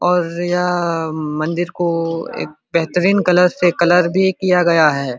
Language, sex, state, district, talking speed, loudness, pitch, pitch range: Hindi, male, Bihar, Supaul, 150 wpm, -16 LUFS, 175 Hz, 165-180 Hz